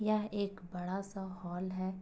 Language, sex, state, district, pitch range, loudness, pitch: Hindi, female, Uttar Pradesh, Jyotiba Phule Nagar, 180-200 Hz, -39 LUFS, 190 Hz